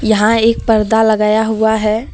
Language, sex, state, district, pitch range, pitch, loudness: Hindi, female, Jharkhand, Deoghar, 215-220 Hz, 220 Hz, -13 LUFS